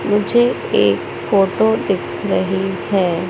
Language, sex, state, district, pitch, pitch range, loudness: Hindi, male, Madhya Pradesh, Katni, 190 Hz, 170-205 Hz, -17 LUFS